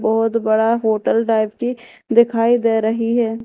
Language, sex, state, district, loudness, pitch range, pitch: Hindi, female, Madhya Pradesh, Dhar, -17 LUFS, 220-235 Hz, 230 Hz